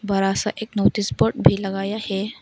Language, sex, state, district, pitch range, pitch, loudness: Hindi, female, Arunachal Pradesh, Longding, 195-215 Hz, 200 Hz, -21 LUFS